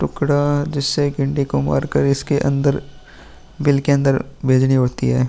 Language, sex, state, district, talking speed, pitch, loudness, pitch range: Hindi, male, Uttar Pradesh, Muzaffarnagar, 160 wpm, 140 Hz, -18 LUFS, 130-145 Hz